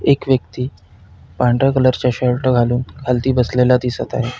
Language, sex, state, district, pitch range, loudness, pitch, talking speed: Marathi, male, Maharashtra, Pune, 120-130 Hz, -17 LUFS, 125 Hz, 135 wpm